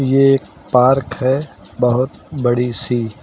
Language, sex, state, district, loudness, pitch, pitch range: Hindi, male, Uttar Pradesh, Lucknow, -17 LUFS, 125 Hz, 120-135 Hz